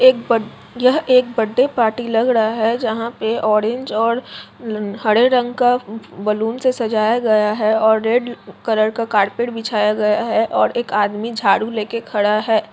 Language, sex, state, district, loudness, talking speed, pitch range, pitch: Hindi, female, Jharkhand, Jamtara, -17 LUFS, 165 wpm, 215-240 Hz, 225 Hz